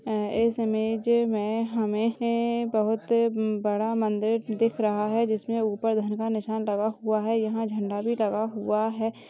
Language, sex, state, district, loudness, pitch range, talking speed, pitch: Hindi, female, Chhattisgarh, Rajnandgaon, -26 LUFS, 215-230 Hz, 155 wpm, 220 Hz